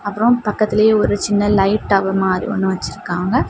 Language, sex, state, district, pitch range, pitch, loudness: Tamil, female, Tamil Nadu, Kanyakumari, 195-215 Hz, 205 Hz, -16 LUFS